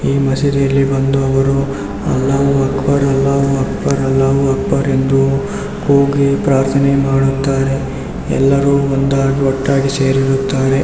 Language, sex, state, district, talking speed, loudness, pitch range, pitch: Kannada, male, Karnataka, Raichur, 85 wpm, -14 LUFS, 135-140 Hz, 135 Hz